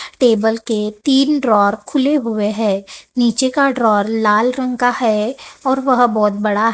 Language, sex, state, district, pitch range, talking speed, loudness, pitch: Hindi, female, Maharashtra, Gondia, 210-260 Hz, 160 wpm, -16 LUFS, 230 Hz